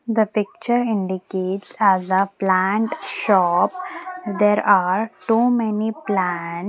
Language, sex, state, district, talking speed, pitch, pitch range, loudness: English, female, Maharashtra, Mumbai Suburban, 110 wpm, 210 Hz, 190-225 Hz, -20 LUFS